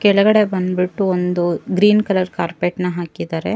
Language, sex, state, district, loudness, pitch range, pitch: Kannada, female, Karnataka, Bangalore, -17 LUFS, 175-200 Hz, 180 Hz